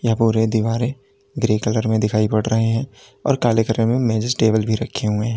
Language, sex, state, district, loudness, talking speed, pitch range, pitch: Hindi, male, Uttar Pradesh, Lalitpur, -19 LUFS, 225 wpm, 110-115 Hz, 115 Hz